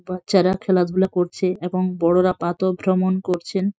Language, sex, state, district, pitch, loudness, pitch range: Bengali, female, West Bengal, Jhargram, 185 Hz, -20 LUFS, 180-190 Hz